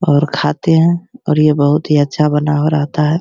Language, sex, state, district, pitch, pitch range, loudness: Hindi, male, Bihar, Begusarai, 150 Hz, 145-160 Hz, -14 LUFS